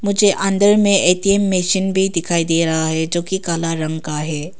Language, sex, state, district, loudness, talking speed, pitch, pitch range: Hindi, female, Arunachal Pradesh, Papum Pare, -16 LUFS, 210 wpm, 180 Hz, 160-195 Hz